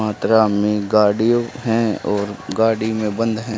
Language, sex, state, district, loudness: Hindi, female, Haryana, Charkhi Dadri, -18 LUFS